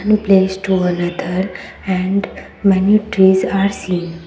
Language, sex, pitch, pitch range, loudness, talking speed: English, female, 190 Hz, 185-195 Hz, -16 LUFS, 125 wpm